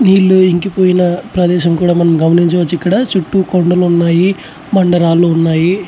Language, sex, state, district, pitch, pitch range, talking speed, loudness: Telugu, male, Andhra Pradesh, Chittoor, 175 Hz, 170-185 Hz, 90 wpm, -11 LUFS